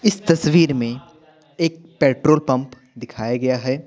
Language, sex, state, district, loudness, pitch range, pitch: Hindi, male, Bihar, Patna, -19 LUFS, 130-165 Hz, 150 Hz